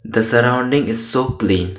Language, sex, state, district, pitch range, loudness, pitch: English, male, Arunachal Pradesh, Lower Dibang Valley, 105-125 Hz, -15 LUFS, 115 Hz